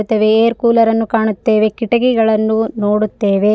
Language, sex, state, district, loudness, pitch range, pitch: Kannada, female, Karnataka, Raichur, -14 LUFS, 215-230 Hz, 220 Hz